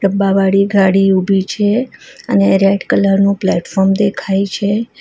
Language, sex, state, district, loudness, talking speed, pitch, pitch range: Gujarati, female, Gujarat, Valsad, -13 LUFS, 145 wpm, 195 Hz, 195-205 Hz